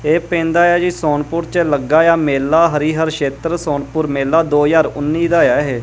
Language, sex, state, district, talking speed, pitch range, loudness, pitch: Punjabi, male, Punjab, Kapurthala, 195 wpm, 145-170 Hz, -15 LUFS, 160 Hz